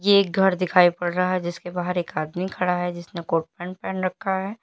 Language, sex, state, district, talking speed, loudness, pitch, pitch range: Hindi, female, Uttar Pradesh, Lalitpur, 235 wpm, -23 LUFS, 180 Hz, 175-190 Hz